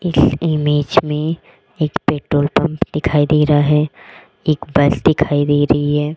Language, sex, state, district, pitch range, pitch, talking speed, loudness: Hindi, female, Rajasthan, Jaipur, 145-155 Hz, 150 Hz, 155 wpm, -16 LUFS